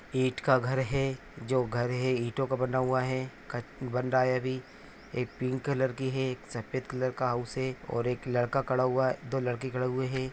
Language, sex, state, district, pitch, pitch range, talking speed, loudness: Hindi, male, Bihar, Purnia, 130 Hz, 125-130 Hz, 225 wpm, -31 LUFS